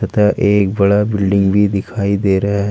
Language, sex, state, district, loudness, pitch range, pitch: Hindi, male, Jharkhand, Ranchi, -14 LUFS, 100-105 Hz, 100 Hz